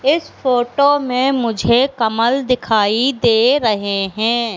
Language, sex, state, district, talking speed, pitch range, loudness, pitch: Hindi, female, Madhya Pradesh, Katni, 120 wpm, 225-265 Hz, -16 LUFS, 240 Hz